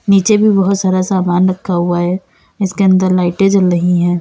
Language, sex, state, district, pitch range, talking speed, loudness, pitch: Hindi, female, Uttar Pradesh, Lalitpur, 175-195 Hz, 200 wpm, -13 LUFS, 185 Hz